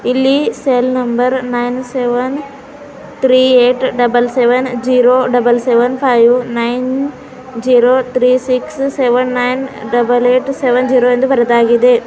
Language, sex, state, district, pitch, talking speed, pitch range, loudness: Kannada, female, Karnataka, Bidar, 250 Hz, 125 wpm, 245-260 Hz, -12 LUFS